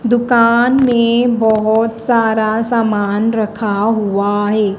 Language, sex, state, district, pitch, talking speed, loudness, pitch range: Hindi, female, Madhya Pradesh, Dhar, 225 Hz, 100 wpm, -14 LUFS, 215-235 Hz